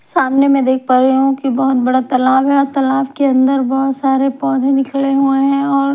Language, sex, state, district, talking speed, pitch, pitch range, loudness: Hindi, female, Bihar, Patna, 220 wpm, 270 Hz, 265-275 Hz, -14 LUFS